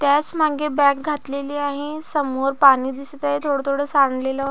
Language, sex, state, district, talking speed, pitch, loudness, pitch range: Marathi, female, Maharashtra, Pune, 160 wpm, 285 Hz, -20 LUFS, 275-290 Hz